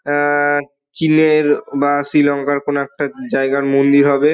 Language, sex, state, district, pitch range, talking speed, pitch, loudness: Bengali, male, West Bengal, Dakshin Dinajpur, 140-145 Hz, 125 wpm, 145 Hz, -15 LUFS